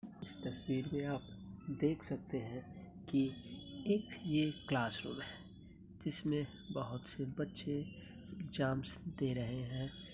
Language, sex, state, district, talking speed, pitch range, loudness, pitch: Hindi, male, Bihar, Muzaffarpur, 125 wpm, 130-150 Hz, -41 LUFS, 135 Hz